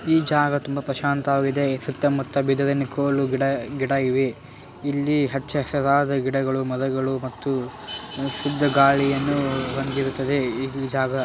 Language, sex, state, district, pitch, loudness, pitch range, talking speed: Kannada, male, Karnataka, Dharwad, 140 Hz, -23 LUFS, 135-140 Hz, 110 wpm